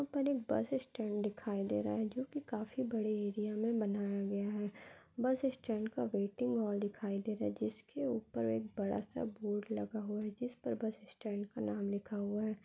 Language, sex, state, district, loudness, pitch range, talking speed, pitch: Hindi, female, Bihar, Araria, -39 LUFS, 205-235 Hz, 215 wpm, 215 Hz